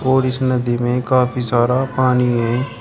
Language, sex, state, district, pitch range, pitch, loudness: Hindi, male, Uttar Pradesh, Shamli, 120-130 Hz, 125 Hz, -17 LUFS